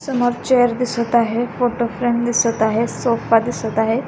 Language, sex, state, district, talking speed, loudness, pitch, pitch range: Marathi, female, Maharashtra, Aurangabad, 160 wpm, -18 LUFS, 235 Hz, 230-245 Hz